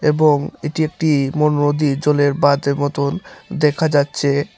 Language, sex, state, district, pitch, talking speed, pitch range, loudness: Bengali, male, Tripura, Unakoti, 145 Hz, 130 wpm, 140-150 Hz, -17 LUFS